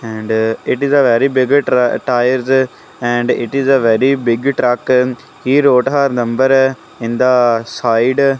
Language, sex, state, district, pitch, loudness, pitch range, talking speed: English, male, Punjab, Kapurthala, 125 Hz, -14 LUFS, 120-135 Hz, 155 wpm